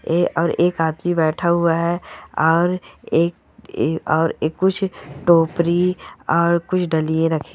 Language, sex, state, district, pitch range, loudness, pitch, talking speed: Hindi, male, Goa, North and South Goa, 160-175 Hz, -19 LUFS, 170 Hz, 125 wpm